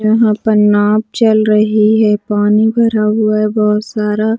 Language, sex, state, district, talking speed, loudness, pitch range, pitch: Hindi, female, Chhattisgarh, Bastar, 175 wpm, -12 LUFS, 210-220 Hz, 215 Hz